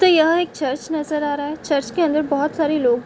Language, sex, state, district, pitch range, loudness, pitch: Hindi, female, Bihar, Gopalganj, 285-320 Hz, -20 LUFS, 300 Hz